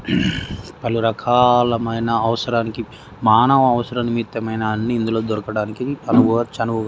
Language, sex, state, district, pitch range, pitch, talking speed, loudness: Telugu, male, Andhra Pradesh, Guntur, 110-120 Hz, 115 Hz, 85 wpm, -19 LUFS